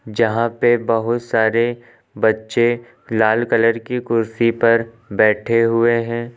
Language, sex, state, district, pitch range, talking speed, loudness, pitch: Hindi, male, Uttar Pradesh, Lucknow, 115-120 Hz, 120 wpm, -17 LUFS, 115 Hz